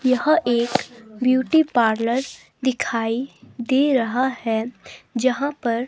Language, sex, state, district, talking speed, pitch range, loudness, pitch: Hindi, female, Himachal Pradesh, Shimla, 100 wpm, 235-260 Hz, -21 LUFS, 250 Hz